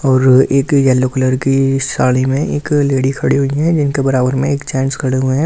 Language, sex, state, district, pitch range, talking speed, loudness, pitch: Hindi, male, Delhi, New Delhi, 130-140 Hz, 220 wpm, -14 LUFS, 135 Hz